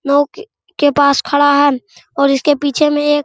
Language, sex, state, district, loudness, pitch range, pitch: Hindi, male, Bihar, Araria, -13 LUFS, 280-295 Hz, 285 Hz